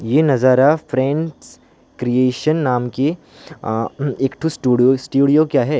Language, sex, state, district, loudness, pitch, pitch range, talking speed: Hindi, male, West Bengal, Alipurduar, -17 LUFS, 135 Hz, 125-150 Hz, 135 wpm